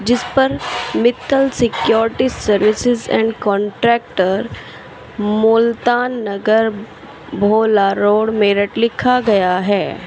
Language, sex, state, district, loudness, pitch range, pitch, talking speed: Hindi, female, Uttar Pradesh, Shamli, -15 LUFS, 205-240 Hz, 220 Hz, 85 wpm